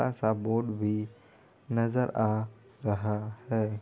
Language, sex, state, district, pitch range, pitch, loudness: Hindi, female, Bihar, Darbhanga, 105-115 Hz, 110 Hz, -31 LUFS